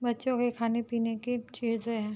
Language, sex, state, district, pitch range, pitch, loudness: Hindi, female, Uttar Pradesh, Jyotiba Phule Nagar, 230-245 Hz, 235 Hz, -31 LUFS